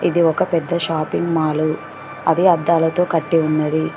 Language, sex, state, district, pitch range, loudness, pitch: Telugu, female, Telangana, Mahabubabad, 155-170 Hz, -18 LUFS, 165 Hz